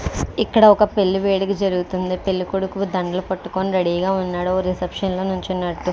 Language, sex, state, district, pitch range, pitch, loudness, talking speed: Telugu, female, Andhra Pradesh, Krishna, 185-195 Hz, 185 Hz, -20 LUFS, 160 wpm